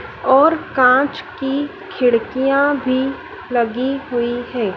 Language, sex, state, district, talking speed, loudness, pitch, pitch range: Hindi, female, Madhya Pradesh, Dhar, 100 wpm, -17 LUFS, 265 Hz, 245-280 Hz